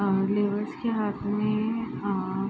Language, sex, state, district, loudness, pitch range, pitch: Hindi, female, Bihar, Araria, -28 LUFS, 200-215 Hz, 205 Hz